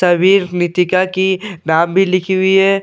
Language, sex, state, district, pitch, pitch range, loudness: Hindi, male, Bihar, Katihar, 185 Hz, 180-190 Hz, -14 LUFS